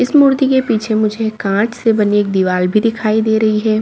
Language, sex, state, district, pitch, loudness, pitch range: Hindi, female, Chhattisgarh, Bastar, 220 Hz, -14 LUFS, 210-225 Hz